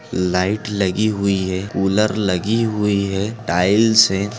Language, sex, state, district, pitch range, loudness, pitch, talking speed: Hindi, female, Chhattisgarh, Bastar, 95-110 Hz, -18 LUFS, 100 Hz, 135 wpm